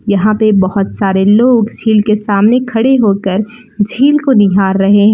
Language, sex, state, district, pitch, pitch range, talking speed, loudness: Hindi, female, Jharkhand, Palamu, 210 Hz, 200-230 Hz, 175 wpm, -11 LUFS